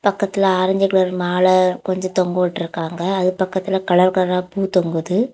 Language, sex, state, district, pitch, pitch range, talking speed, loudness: Tamil, female, Tamil Nadu, Kanyakumari, 185 Hz, 180-190 Hz, 145 wpm, -18 LUFS